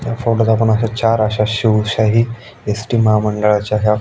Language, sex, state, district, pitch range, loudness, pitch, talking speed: Marathi, male, Maharashtra, Aurangabad, 105-115 Hz, -15 LUFS, 110 Hz, 150 wpm